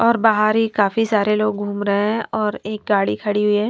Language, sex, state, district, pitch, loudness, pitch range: Hindi, female, Himachal Pradesh, Shimla, 210 Hz, -19 LUFS, 205-220 Hz